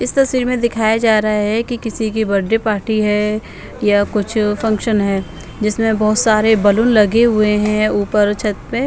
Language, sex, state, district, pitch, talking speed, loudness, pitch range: Hindi, female, Bihar, Patna, 215 Hz, 180 wpm, -15 LUFS, 210-225 Hz